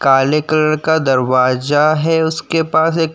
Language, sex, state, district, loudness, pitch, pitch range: Hindi, male, Uttar Pradesh, Jyotiba Phule Nagar, -14 LUFS, 155 Hz, 135-160 Hz